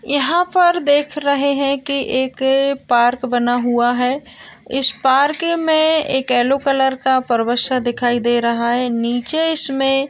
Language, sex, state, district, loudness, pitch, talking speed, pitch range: Hindi, female, Bihar, Gaya, -17 LUFS, 265 Hz, 150 wpm, 245-280 Hz